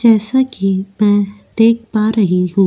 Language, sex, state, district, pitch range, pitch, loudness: Hindi, female, Goa, North and South Goa, 195-225 Hz, 210 Hz, -14 LUFS